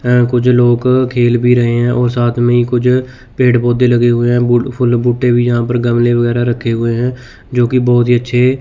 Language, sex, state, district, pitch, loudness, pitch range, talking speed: Hindi, male, Chandigarh, Chandigarh, 120 Hz, -12 LUFS, 120-125 Hz, 225 wpm